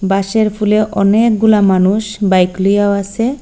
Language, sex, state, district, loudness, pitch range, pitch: Bengali, female, Assam, Hailakandi, -13 LUFS, 195-215 Hz, 205 Hz